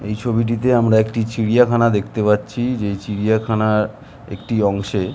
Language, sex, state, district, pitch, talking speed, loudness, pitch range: Bengali, male, West Bengal, Jhargram, 110 Hz, 130 wpm, -18 LUFS, 105-115 Hz